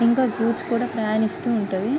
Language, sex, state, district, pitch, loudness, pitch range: Telugu, female, Andhra Pradesh, Krishna, 230 Hz, -23 LUFS, 215-240 Hz